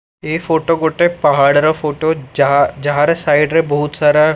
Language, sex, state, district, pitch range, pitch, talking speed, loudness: Odia, male, Odisha, Khordha, 145-160 Hz, 150 Hz, 140 wpm, -14 LUFS